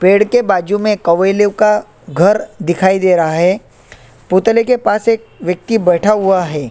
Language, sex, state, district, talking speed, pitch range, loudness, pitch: Hindi, male, Chhattisgarh, Korba, 170 wpm, 175-210 Hz, -13 LUFS, 190 Hz